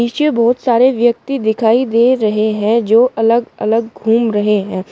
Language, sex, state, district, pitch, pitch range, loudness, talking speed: Hindi, female, Uttar Pradesh, Shamli, 230 Hz, 220-240 Hz, -13 LUFS, 170 wpm